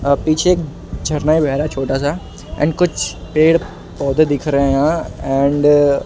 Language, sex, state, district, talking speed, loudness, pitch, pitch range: Hindi, male, Delhi, New Delhi, 180 wpm, -16 LUFS, 145 Hz, 140-155 Hz